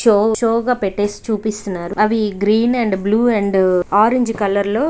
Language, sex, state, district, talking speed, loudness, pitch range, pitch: Telugu, female, Andhra Pradesh, Visakhapatnam, 170 wpm, -16 LUFS, 200-225 Hz, 215 Hz